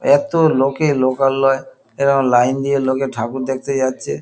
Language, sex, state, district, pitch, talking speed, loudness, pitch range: Bengali, male, West Bengal, Kolkata, 135 Hz, 140 wpm, -17 LUFS, 130-140 Hz